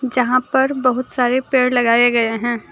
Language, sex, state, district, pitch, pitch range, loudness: Hindi, female, Jharkhand, Deoghar, 250 Hz, 240-255 Hz, -16 LUFS